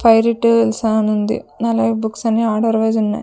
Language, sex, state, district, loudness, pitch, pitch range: Telugu, female, Andhra Pradesh, Sri Satya Sai, -16 LUFS, 225 Hz, 220-230 Hz